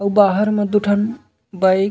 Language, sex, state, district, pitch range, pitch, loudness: Chhattisgarhi, male, Chhattisgarh, Raigarh, 195-210 Hz, 205 Hz, -17 LUFS